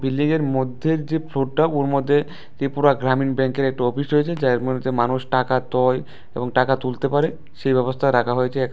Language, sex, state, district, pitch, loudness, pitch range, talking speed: Bengali, male, Tripura, West Tripura, 135 Hz, -21 LUFS, 130-145 Hz, 185 wpm